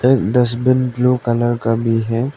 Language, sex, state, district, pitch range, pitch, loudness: Hindi, male, Arunachal Pradesh, Lower Dibang Valley, 115-125 Hz, 120 Hz, -16 LUFS